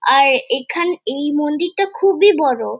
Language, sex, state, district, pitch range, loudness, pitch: Bengali, female, West Bengal, Kolkata, 270-390 Hz, -16 LUFS, 300 Hz